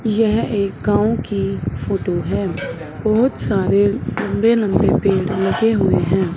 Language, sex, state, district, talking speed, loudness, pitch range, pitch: Hindi, male, Punjab, Fazilka, 130 wpm, -18 LUFS, 190-225 Hz, 205 Hz